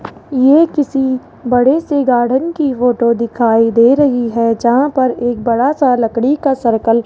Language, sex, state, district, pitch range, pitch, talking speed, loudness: Hindi, male, Rajasthan, Jaipur, 235-275 Hz, 250 Hz, 170 wpm, -13 LUFS